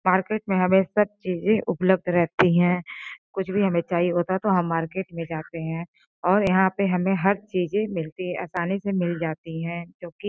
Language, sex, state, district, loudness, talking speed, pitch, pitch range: Hindi, female, Uttar Pradesh, Gorakhpur, -24 LUFS, 200 wpm, 180 Hz, 170-195 Hz